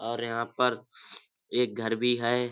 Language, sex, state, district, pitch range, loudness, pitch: Hindi, male, Uttar Pradesh, Budaun, 115-125 Hz, -29 LUFS, 120 Hz